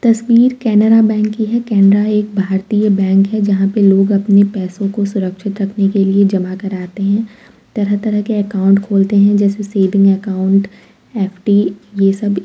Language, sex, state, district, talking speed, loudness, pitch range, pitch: Hindi, female, Uttar Pradesh, Varanasi, 170 wpm, -13 LUFS, 195-210 Hz, 200 Hz